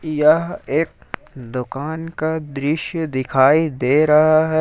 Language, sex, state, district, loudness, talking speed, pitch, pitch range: Hindi, male, Jharkhand, Ranchi, -18 LUFS, 115 wpm, 155 Hz, 140-160 Hz